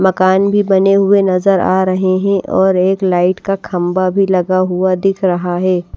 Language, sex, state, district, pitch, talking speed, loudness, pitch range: Hindi, female, Bihar, Patna, 185 Hz, 190 wpm, -13 LUFS, 185-195 Hz